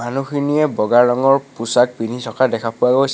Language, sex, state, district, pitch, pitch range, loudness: Assamese, male, Assam, Sonitpur, 125 Hz, 115-135 Hz, -17 LUFS